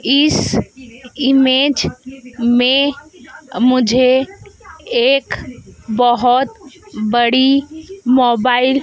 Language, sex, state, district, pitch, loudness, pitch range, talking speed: Hindi, female, Madhya Pradesh, Dhar, 260 Hz, -14 LUFS, 245-280 Hz, 60 wpm